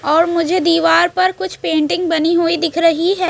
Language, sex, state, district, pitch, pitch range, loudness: Hindi, female, Chhattisgarh, Raipur, 335 Hz, 330-360 Hz, -15 LUFS